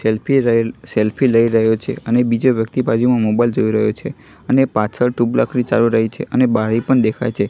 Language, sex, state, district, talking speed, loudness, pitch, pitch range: Gujarati, male, Gujarat, Gandhinagar, 190 wpm, -16 LUFS, 115 Hz, 110-125 Hz